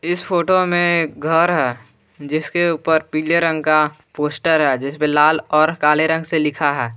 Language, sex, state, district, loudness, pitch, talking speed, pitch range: Hindi, male, Jharkhand, Garhwa, -17 LUFS, 155 Hz, 170 wpm, 150-170 Hz